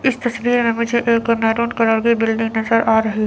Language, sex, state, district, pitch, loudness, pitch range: Hindi, female, Chandigarh, Chandigarh, 230 Hz, -17 LUFS, 225-235 Hz